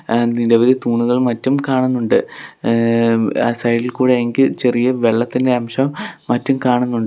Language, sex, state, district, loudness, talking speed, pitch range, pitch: Malayalam, male, Kerala, Kollam, -16 LUFS, 135 wpm, 115-130 Hz, 120 Hz